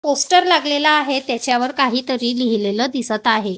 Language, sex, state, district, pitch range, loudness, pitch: Marathi, female, Maharashtra, Gondia, 240-285 Hz, -17 LUFS, 255 Hz